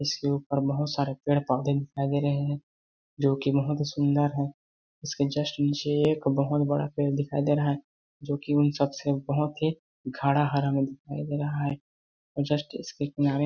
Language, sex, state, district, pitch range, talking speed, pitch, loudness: Hindi, male, Chhattisgarh, Balrampur, 140-145 Hz, 185 wpm, 145 Hz, -27 LUFS